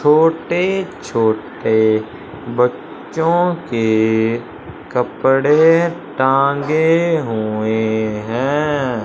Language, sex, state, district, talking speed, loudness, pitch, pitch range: Hindi, male, Punjab, Fazilka, 55 wpm, -16 LUFS, 135 Hz, 110-160 Hz